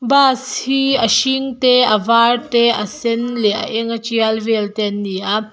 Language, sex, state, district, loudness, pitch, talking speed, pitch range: Mizo, female, Mizoram, Aizawl, -16 LUFS, 230 Hz, 130 wpm, 215-250 Hz